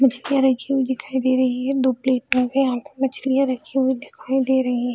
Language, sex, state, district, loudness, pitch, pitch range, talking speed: Hindi, female, Bihar, Jamui, -21 LUFS, 260 Hz, 255-270 Hz, 195 wpm